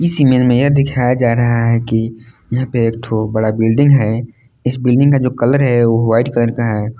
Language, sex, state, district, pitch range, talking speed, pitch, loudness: Hindi, male, Jharkhand, Palamu, 115-130 Hz, 195 wpm, 120 Hz, -14 LUFS